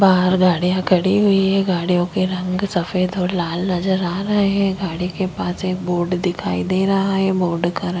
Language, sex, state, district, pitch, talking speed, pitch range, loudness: Hindi, female, Maharashtra, Chandrapur, 185 Hz, 210 wpm, 180-195 Hz, -19 LUFS